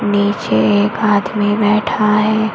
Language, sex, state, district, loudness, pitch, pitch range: Hindi, female, Maharashtra, Mumbai Suburban, -14 LUFS, 210 Hz, 205-215 Hz